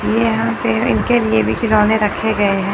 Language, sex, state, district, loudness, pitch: Hindi, male, Chandigarh, Chandigarh, -15 LUFS, 195 Hz